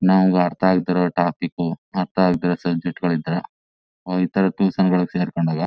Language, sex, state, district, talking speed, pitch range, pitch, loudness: Kannada, male, Karnataka, Chamarajanagar, 105 wpm, 85-90 Hz, 90 Hz, -20 LUFS